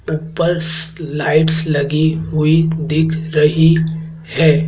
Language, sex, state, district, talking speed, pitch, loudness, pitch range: Hindi, male, Madhya Pradesh, Dhar, 90 wpm, 160 Hz, -15 LUFS, 155-160 Hz